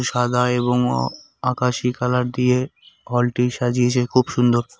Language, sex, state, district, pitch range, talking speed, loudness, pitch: Bengali, male, West Bengal, Cooch Behar, 120-125 Hz, 125 wpm, -20 LUFS, 125 Hz